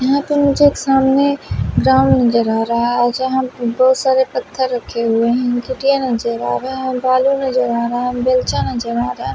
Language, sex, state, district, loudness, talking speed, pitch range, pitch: Hindi, female, Bihar, West Champaran, -16 LUFS, 210 wpm, 235-265 Hz, 255 Hz